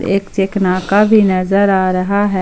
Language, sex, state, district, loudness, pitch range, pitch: Hindi, female, Jharkhand, Palamu, -13 LUFS, 185-200 Hz, 195 Hz